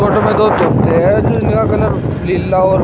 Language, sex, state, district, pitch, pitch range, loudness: Hindi, male, Uttar Pradesh, Shamli, 135 Hz, 115-185 Hz, -13 LUFS